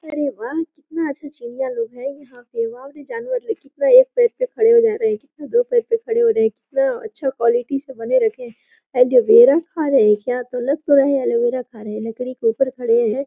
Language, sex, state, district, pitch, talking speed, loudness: Hindi, female, Jharkhand, Sahebganj, 290 Hz, 260 wpm, -18 LUFS